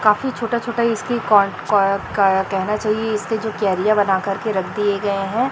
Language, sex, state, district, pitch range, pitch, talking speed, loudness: Hindi, female, Chhattisgarh, Raipur, 195-225 Hz, 210 Hz, 185 wpm, -19 LUFS